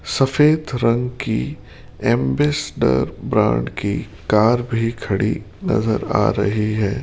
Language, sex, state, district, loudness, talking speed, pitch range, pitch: Hindi, male, Rajasthan, Jaipur, -19 LUFS, 110 wpm, 105-130 Hz, 115 Hz